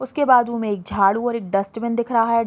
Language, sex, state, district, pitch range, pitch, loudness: Hindi, female, Bihar, Sitamarhi, 205-235 Hz, 230 Hz, -20 LUFS